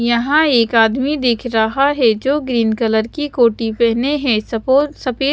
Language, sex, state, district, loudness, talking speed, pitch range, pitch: Hindi, female, Chandigarh, Chandigarh, -15 LUFS, 170 wpm, 225-275 Hz, 240 Hz